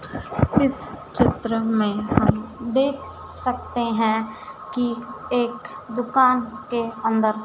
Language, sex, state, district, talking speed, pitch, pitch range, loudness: Hindi, female, Madhya Pradesh, Dhar, 95 wpm, 225 Hz, 215-250 Hz, -22 LUFS